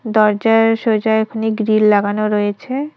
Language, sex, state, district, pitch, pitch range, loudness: Bengali, female, West Bengal, Cooch Behar, 220 Hz, 215-225 Hz, -15 LUFS